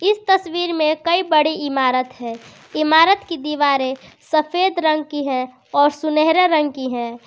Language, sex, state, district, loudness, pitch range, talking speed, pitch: Hindi, female, Jharkhand, Garhwa, -18 LUFS, 265-335 Hz, 155 wpm, 305 Hz